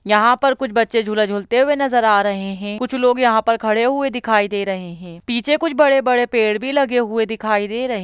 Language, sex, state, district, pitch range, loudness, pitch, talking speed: Hindi, female, Bihar, Jahanabad, 210-255 Hz, -17 LUFS, 230 Hz, 240 wpm